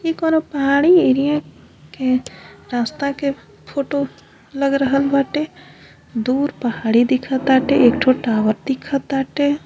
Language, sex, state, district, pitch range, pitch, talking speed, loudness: Bhojpuri, female, Uttar Pradesh, Gorakhpur, 255-285 Hz, 275 Hz, 125 wpm, -18 LUFS